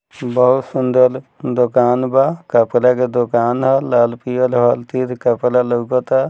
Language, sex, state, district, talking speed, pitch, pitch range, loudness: Bhojpuri, male, Bihar, Muzaffarpur, 115 wpm, 125 Hz, 120-130 Hz, -15 LUFS